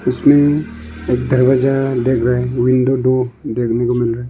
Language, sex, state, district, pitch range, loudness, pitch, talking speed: Hindi, male, Arunachal Pradesh, Longding, 120-130 Hz, -15 LUFS, 125 Hz, 165 wpm